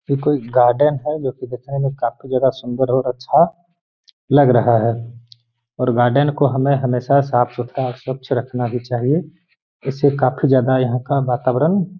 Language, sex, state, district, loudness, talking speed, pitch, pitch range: Hindi, male, Bihar, Gaya, -18 LUFS, 165 wpm, 130 Hz, 125-140 Hz